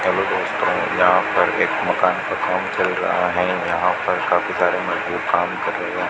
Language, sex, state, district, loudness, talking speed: Hindi, male, Rajasthan, Bikaner, -19 LUFS, 195 wpm